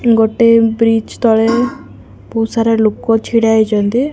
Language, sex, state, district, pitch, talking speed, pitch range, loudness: Odia, female, Odisha, Khordha, 225 Hz, 100 wpm, 225-230 Hz, -13 LUFS